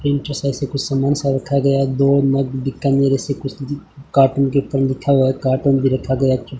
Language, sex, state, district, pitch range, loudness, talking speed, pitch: Hindi, male, Rajasthan, Bikaner, 135-140 Hz, -18 LUFS, 225 wpm, 135 Hz